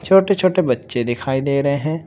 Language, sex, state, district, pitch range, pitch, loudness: Hindi, male, Uttar Pradesh, Shamli, 130-185 Hz, 140 Hz, -18 LUFS